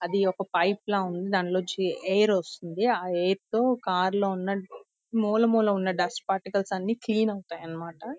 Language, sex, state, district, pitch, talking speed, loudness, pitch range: Telugu, female, Andhra Pradesh, Visakhapatnam, 195 Hz, 170 wpm, -27 LUFS, 185-215 Hz